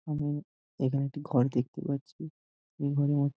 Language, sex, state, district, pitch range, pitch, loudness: Bengali, male, West Bengal, Dakshin Dinajpur, 135-145 Hz, 140 Hz, -31 LUFS